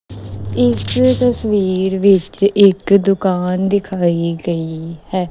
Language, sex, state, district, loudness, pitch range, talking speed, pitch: Punjabi, female, Punjab, Kapurthala, -15 LUFS, 130-195 Hz, 90 wpm, 180 Hz